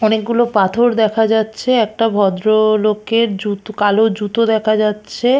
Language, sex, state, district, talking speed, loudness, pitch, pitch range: Bengali, female, West Bengal, Purulia, 145 wpm, -15 LUFS, 220 Hz, 210-225 Hz